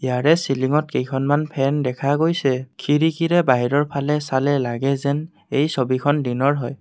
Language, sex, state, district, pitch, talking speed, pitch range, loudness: Assamese, male, Assam, Kamrup Metropolitan, 140 Hz, 140 wpm, 130-150 Hz, -20 LUFS